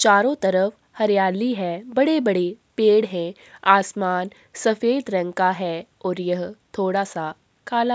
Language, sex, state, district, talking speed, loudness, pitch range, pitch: Hindi, female, Uttarakhand, Tehri Garhwal, 135 wpm, -22 LUFS, 180-220 Hz, 195 Hz